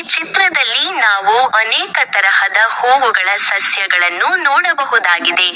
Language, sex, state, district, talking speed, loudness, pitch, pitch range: Kannada, female, Karnataka, Koppal, 75 wpm, -11 LUFS, 250 Hz, 180-305 Hz